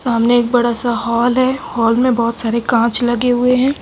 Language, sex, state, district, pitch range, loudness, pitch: Hindi, female, Bihar, Kaimur, 235-245 Hz, -15 LUFS, 240 Hz